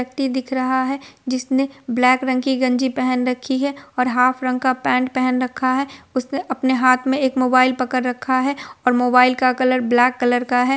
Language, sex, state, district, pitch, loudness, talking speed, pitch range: Hindi, female, Bihar, Supaul, 255 Hz, -19 LUFS, 205 wpm, 250-265 Hz